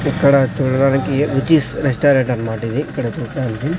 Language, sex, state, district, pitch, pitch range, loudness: Telugu, male, Andhra Pradesh, Sri Satya Sai, 135 Hz, 125-145 Hz, -17 LUFS